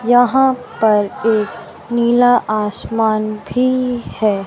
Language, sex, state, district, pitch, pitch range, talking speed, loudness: Hindi, male, Madhya Pradesh, Katni, 225 Hz, 215-245 Hz, 95 wpm, -16 LUFS